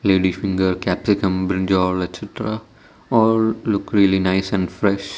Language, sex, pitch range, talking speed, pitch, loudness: English, male, 95-110 Hz, 125 wpm, 95 Hz, -19 LUFS